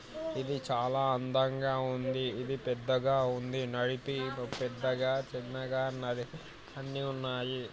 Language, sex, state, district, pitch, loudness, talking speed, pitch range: Telugu, male, Andhra Pradesh, Guntur, 130 Hz, -34 LUFS, 110 wpm, 125-135 Hz